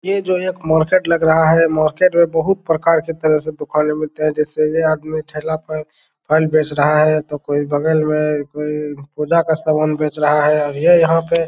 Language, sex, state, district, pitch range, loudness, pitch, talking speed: Hindi, male, Bihar, Saran, 150-165 Hz, -16 LUFS, 155 Hz, 215 wpm